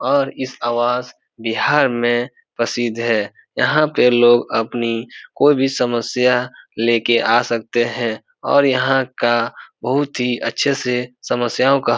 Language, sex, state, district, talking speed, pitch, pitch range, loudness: Hindi, male, Bihar, Supaul, 145 wpm, 120 Hz, 120-130 Hz, -18 LUFS